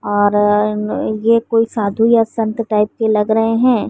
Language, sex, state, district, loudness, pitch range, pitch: Hindi, female, Uttar Pradesh, Varanasi, -15 LUFS, 210-225 Hz, 220 Hz